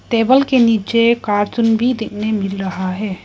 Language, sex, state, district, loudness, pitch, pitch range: Hindi, female, Arunachal Pradesh, Papum Pare, -16 LUFS, 225 Hz, 205-235 Hz